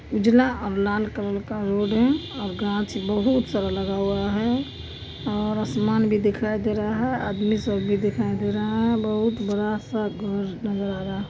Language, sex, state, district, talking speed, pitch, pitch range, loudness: Maithili, female, Bihar, Supaul, 200 wpm, 210 Hz, 205-220 Hz, -24 LUFS